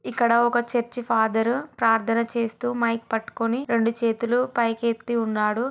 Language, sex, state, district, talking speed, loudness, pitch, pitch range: Telugu, female, Telangana, Karimnagar, 135 wpm, -23 LUFS, 235 Hz, 225-240 Hz